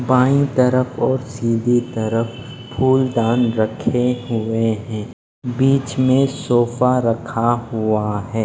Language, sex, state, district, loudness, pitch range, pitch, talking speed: Hindi, male, Punjab, Fazilka, -18 LUFS, 115-130 Hz, 120 Hz, 115 wpm